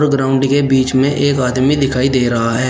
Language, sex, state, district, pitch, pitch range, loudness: Hindi, male, Uttar Pradesh, Shamli, 135 Hz, 130-140 Hz, -14 LUFS